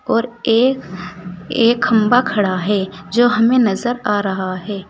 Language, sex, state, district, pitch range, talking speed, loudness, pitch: Hindi, female, Uttar Pradesh, Saharanpur, 185-240 Hz, 145 wpm, -16 LUFS, 210 Hz